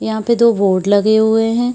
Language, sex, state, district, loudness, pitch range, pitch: Hindi, female, Bihar, Muzaffarpur, -13 LUFS, 205-235 Hz, 220 Hz